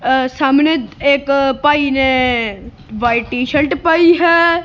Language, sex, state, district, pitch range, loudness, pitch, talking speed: Punjabi, male, Punjab, Kapurthala, 255-315 Hz, -14 LUFS, 275 Hz, 130 wpm